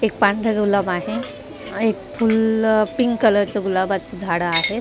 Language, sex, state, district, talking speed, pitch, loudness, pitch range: Marathi, female, Maharashtra, Mumbai Suburban, 150 wpm, 205 Hz, -19 LUFS, 195-220 Hz